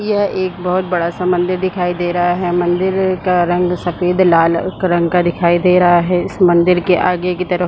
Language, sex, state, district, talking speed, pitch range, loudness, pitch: Hindi, female, Chhattisgarh, Bilaspur, 225 wpm, 175-185 Hz, -14 LUFS, 180 Hz